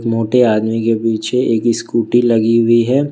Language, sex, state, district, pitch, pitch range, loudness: Hindi, male, Jharkhand, Ranchi, 115 Hz, 115-120 Hz, -14 LUFS